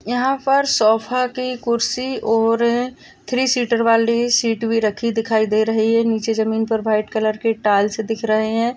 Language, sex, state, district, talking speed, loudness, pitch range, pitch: Hindi, female, Maharashtra, Solapur, 180 wpm, -18 LUFS, 220-245 Hz, 230 Hz